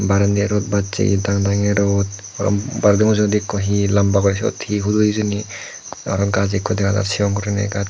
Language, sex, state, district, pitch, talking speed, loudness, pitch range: Chakma, male, Tripura, Dhalai, 100 Hz, 175 wpm, -18 LUFS, 100-105 Hz